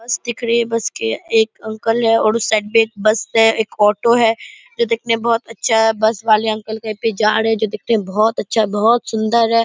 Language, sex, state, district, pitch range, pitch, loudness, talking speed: Hindi, female, Bihar, Purnia, 220-230 Hz, 225 Hz, -16 LUFS, 260 wpm